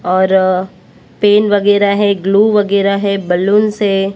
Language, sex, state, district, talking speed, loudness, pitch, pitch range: Hindi, female, Maharashtra, Mumbai Suburban, 130 wpm, -12 LUFS, 200 Hz, 190-205 Hz